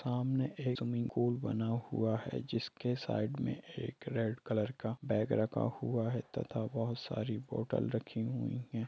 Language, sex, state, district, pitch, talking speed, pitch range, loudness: Hindi, male, Jharkhand, Sahebganj, 120 Hz, 170 wpm, 110-125 Hz, -37 LUFS